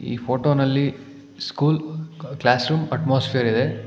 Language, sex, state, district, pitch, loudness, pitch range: Kannada, male, Karnataka, Bangalore, 140 Hz, -21 LUFS, 130-155 Hz